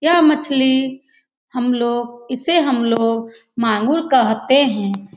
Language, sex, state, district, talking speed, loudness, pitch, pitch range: Hindi, female, Bihar, Lakhisarai, 105 wpm, -17 LUFS, 250 Hz, 230-280 Hz